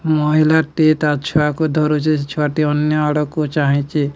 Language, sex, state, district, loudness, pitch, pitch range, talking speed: Odia, male, Odisha, Nuapada, -16 LUFS, 150 Hz, 150-155 Hz, 130 wpm